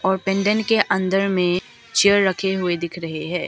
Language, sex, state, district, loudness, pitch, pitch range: Hindi, female, Arunachal Pradesh, Lower Dibang Valley, -20 LUFS, 190 Hz, 175-200 Hz